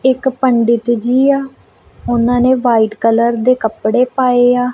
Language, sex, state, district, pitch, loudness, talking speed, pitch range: Punjabi, female, Punjab, Kapurthala, 245 Hz, -13 LUFS, 150 wpm, 235-255 Hz